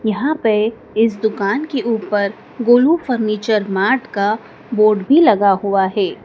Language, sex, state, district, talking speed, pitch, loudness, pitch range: Hindi, female, Madhya Pradesh, Dhar, 145 wpm, 220 Hz, -16 LUFS, 205-240 Hz